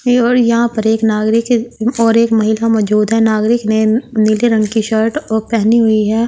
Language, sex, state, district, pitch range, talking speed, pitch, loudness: Hindi, female, Delhi, New Delhi, 220-230 Hz, 180 wpm, 225 Hz, -13 LUFS